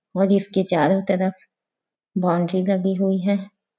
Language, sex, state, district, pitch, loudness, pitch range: Hindi, female, Chhattisgarh, Sarguja, 190 Hz, -21 LUFS, 185-195 Hz